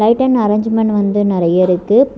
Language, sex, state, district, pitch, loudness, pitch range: Tamil, female, Tamil Nadu, Kanyakumari, 210 Hz, -13 LUFS, 195-225 Hz